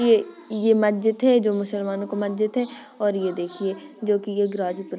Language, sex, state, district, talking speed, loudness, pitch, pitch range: Hindi, female, Uttar Pradesh, Ghazipur, 190 wpm, -23 LUFS, 205 Hz, 200-220 Hz